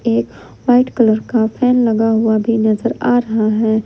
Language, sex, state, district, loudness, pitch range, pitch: Hindi, female, Jharkhand, Ranchi, -15 LUFS, 220-235 Hz, 225 Hz